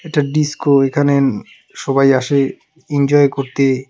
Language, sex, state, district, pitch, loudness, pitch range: Bengali, male, West Bengal, Alipurduar, 140 Hz, -15 LUFS, 135-145 Hz